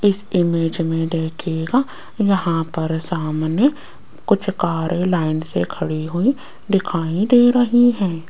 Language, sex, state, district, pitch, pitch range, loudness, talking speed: Hindi, female, Rajasthan, Jaipur, 175 Hz, 165-205 Hz, -19 LUFS, 130 wpm